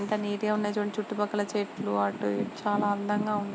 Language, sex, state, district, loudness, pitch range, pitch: Telugu, female, Andhra Pradesh, Srikakulam, -29 LUFS, 205-210 Hz, 205 Hz